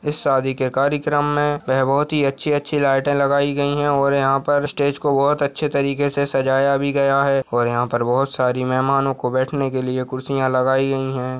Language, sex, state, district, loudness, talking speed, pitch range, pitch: Hindi, male, Chhattisgarh, Jashpur, -19 LUFS, 210 wpm, 130-145 Hz, 140 Hz